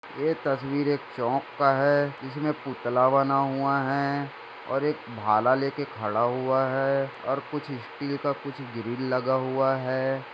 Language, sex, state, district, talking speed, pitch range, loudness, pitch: Hindi, male, Maharashtra, Dhule, 150 wpm, 130-140 Hz, -26 LUFS, 135 Hz